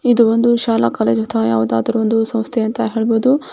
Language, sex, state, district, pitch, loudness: Kannada, female, Karnataka, Belgaum, 225 Hz, -16 LUFS